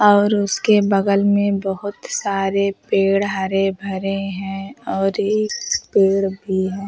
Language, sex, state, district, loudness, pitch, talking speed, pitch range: Hindi, female, Uttar Pradesh, Hamirpur, -19 LUFS, 195 Hz, 130 wpm, 195-205 Hz